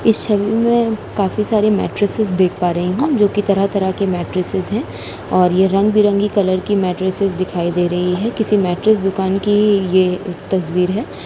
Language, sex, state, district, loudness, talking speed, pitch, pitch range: Hindi, female, Uttar Pradesh, Jalaun, -16 LUFS, 175 wpm, 195 Hz, 185-210 Hz